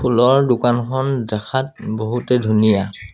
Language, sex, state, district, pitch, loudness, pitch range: Assamese, male, Assam, Sonitpur, 120 Hz, -18 LUFS, 110-130 Hz